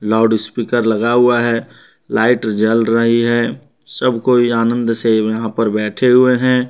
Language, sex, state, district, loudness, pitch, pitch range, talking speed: Hindi, male, Jharkhand, Deoghar, -15 LUFS, 115 Hz, 110-120 Hz, 160 wpm